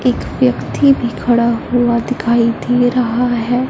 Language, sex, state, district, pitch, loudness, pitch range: Hindi, female, Punjab, Fazilka, 240 Hz, -14 LUFS, 235-245 Hz